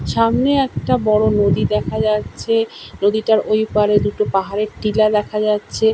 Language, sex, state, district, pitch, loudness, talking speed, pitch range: Bengali, male, West Bengal, Kolkata, 215 Hz, -17 LUFS, 140 wpm, 205-220 Hz